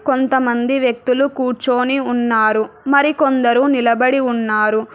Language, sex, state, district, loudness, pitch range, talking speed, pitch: Telugu, female, Telangana, Hyderabad, -16 LUFS, 235-270 Hz, 95 wpm, 250 Hz